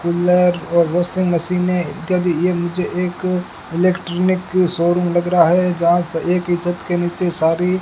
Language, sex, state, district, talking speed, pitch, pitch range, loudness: Hindi, male, Rajasthan, Bikaner, 175 wpm, 175 Hz, 175-180 Hz, -17 LUFS